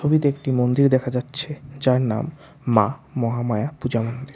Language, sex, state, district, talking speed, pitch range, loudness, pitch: Bengali, male, West Bengal, Alipurduar, 150 wpm, 120-140 Hz, -22 LUFS, 130 Hz